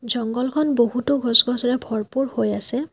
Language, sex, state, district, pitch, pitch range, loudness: Assamese, female, Assam, Kamrup Metropolitan, 245 Hz, 235-260 Hz, -20 LUFS